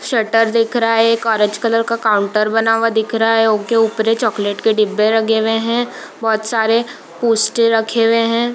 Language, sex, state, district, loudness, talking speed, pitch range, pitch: Hindi, female, Bihar, East Champaran, -15 LUFS, 225 wpm, 220-230 Hz, 225 Hz